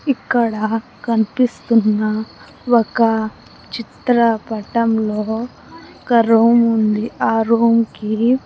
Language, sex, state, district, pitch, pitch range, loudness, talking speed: Telugu, female, Andhra Pradesh, Sri Satya Sai, 230 Hz, 220-235 Hz, -17 LUFS, 70 wpm